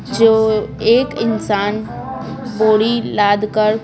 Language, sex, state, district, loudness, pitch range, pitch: Hindi, female, Bihar, Patna, -15 LUFS, 210-225 Hz, 220 Hz